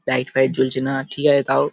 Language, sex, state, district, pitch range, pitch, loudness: Bengali, male, West Bengal, Paschim Medinipur, 130-135 Hz, 135 Hz, -19 LUFS